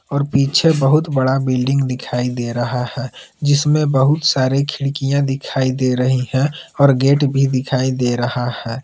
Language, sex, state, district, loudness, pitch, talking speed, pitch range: Hindi, male, Jharkhand, Palamu, -17 LUFS, 135 Hz, 165 wpm, 130-140 Hz